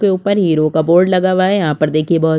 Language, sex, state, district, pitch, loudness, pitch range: Hindi, female, Chhattisgarh, Sukma, 170 Hz, -14 LUFS, 155-185 Hz